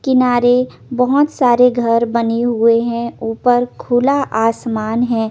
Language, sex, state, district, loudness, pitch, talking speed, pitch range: Hindi, female, Chandigarh, Chandigarh, -15 LUFS, 240 Hz, 125 wpm, 230-250 Hz